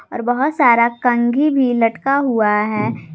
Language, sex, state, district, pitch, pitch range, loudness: Hindi, female, Jharkhand, Garhwa, 240 Hz, 230-270 Hz, -16 LUFS